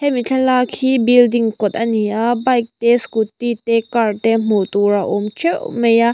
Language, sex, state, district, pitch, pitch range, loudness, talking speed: Mizo, female, Mizoram, Aizawl, 230 Hz, 220-245 Hz, -16 LUFS, 195 wpm